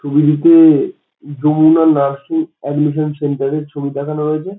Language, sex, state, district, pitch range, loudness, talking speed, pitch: Bengali, male, West Bengal, Dakshin Dinajpur, 145-155 Hz, -14 LUFS, 120 wpm, 150 Hz